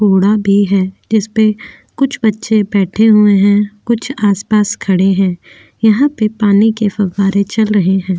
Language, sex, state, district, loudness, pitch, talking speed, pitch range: Hindi, female, Uttar Pradesh, Jyotiba Phule Nagar, -12 LUFS, 205 Hz, 160 wpm, 200-220 Hz